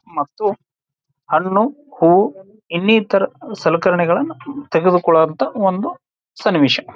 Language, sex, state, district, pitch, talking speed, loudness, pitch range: Kannada, male, Karnataka, Bijapur, 185 Hz, 70 wpm, -17 LUFS, 165-215 Hz